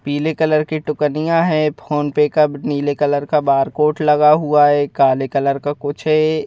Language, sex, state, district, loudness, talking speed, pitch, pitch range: Hindi, male, Madhya Pradesh, Bhopal, -16 LUFS, 185 wpm, 150 Hz, 145-155 Hz